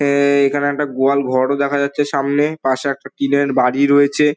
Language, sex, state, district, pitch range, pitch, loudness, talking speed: Bengali, male, West Bengal, Dakshin Dinajpur, 140-145 Hz, 140 Hz, -16 LUFS, 205 wpm